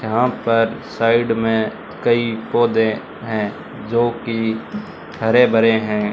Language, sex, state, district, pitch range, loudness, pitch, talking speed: Hindi, male, Rajasthan, Bikaner, 110-120 Hz, -18 LUFS, 115 Hz, 115 wpm